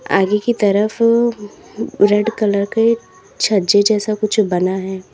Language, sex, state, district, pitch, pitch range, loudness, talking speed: Hindi, female, Uttar Pradesh, Lalitpur, 210 Hz, 200-220 Hz, -16 LUFS, 130 wpm